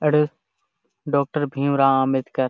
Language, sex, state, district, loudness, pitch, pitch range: Bengali, male, Jharkhand, Jamtara, -21 LUFS, 140 Hz, 135-150 Hz